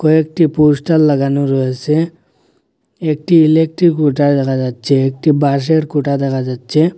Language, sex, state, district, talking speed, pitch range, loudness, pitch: Bengali, male, Assam, Hailakandi, 120 wpm, 140-160 Hz, -14 LUFS, 150 Hz